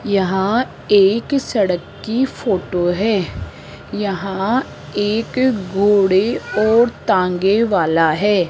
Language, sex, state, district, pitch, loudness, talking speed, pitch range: Hindi, female, Rajasthan, Jaipur, 205 Hz, -17 LUFS, 90 wpm, 190-225 Hz